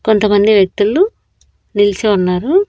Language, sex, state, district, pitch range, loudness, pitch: Telugu, female, Andhra Pradesh, Annamaya, 205-235 Hz, -13 LUFS, 210 Hz